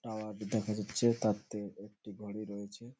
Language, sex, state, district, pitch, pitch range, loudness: Bengali, male, West Bengal, Purulia, 105 Hz, 105-110 Hz, -36 LUFS